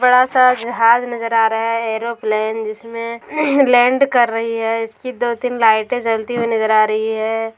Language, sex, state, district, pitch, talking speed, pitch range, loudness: Bhojpuri, female, Bihar, Saran, 230 Hz, 175 wpm, 225-245 Hz, -16 LUFS